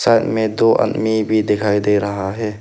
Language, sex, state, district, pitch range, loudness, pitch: Hindi, male, Arunachal Pradesh, Papum Pare, 105-110 Hz, -17 LUFS, 110 Hz